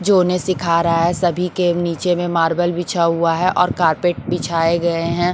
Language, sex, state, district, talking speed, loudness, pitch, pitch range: Hindi, female, Bihar, Patna, 200 wpm, -17 LUFS, 175 Hz, 170-180 Hz